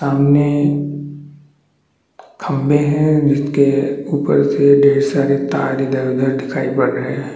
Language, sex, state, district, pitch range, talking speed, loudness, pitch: Hindi, male, Chhattisgarh, Bastar, 140-145 Hz, 105 wpm, -15 LUFS, 140 Hz